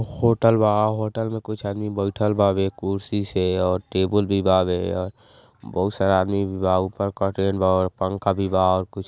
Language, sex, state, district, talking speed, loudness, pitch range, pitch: Bhojpuri, male, Uttar Pradesh, Gorakhpur, 200 wpm, -22 LUFS, 95-105 Hz, 100 Hz